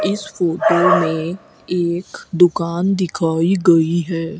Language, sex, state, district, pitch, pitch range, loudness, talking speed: Hindi, female, Rajasthan, Bikaner, 170 Hz, 165-180 Hz, -17 LUFS, 110 wpm